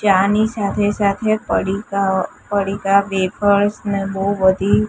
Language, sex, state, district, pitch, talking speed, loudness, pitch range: Gujarati, female, Gujarat, Gandhinagar, 200 Hz, 110 wpm, -18 LUFS, 195-205 Hz